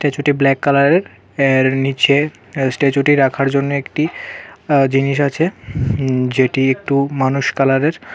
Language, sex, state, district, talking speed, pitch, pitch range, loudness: Bengali, male, Tripura, West Tripura, 120 wpm, 140 Hz, 135-145 Hz, -16 LUFS